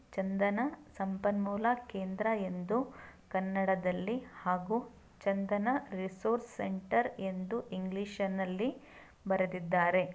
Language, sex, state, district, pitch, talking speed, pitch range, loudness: Kannada, female, Karnataka, Mysore, 195 Hz, 75 wpm, 190-230 Hz, -35 LUFS